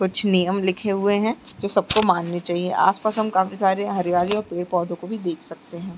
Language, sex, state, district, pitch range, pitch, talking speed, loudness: Hindi, female, Uttarakhand, Tehri Garhwal, 175-205 Hz, 190 Hz, 210 wpm, -22 LUFS